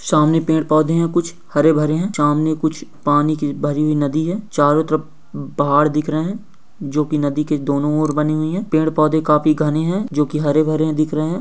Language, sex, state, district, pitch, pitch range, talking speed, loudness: Hindi, male, Jharkhand, Sahebganj, 155 Hz, 150-160 Hz, 200 wpm, -17 LUFS